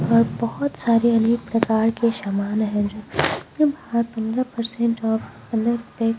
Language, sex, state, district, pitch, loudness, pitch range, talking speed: Hindi, female, Bihar, Patna, 230 Hz, -22 LUFS, 220-235 Hz, 125 wpm